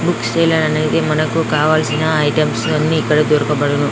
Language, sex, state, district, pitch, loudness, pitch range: Telugu, female, Andhra Pradesh, Chittoor, 155 Hz, -15 LUFS, 150-155 Hz